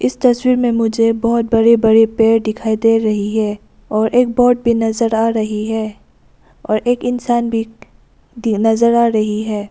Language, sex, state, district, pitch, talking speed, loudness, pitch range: Hindi, female, Arunachal Pradesh, Lower Dibang Valley, 225 Hz, 180 wpm, -15 LUFS, 220-235 Hz